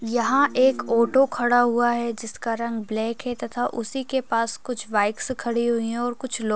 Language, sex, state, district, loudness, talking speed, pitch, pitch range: Hindi, female, Bihar, Darbhanga, -23 LUFS, 210 wpm, 235 Hz, 230-250 Hz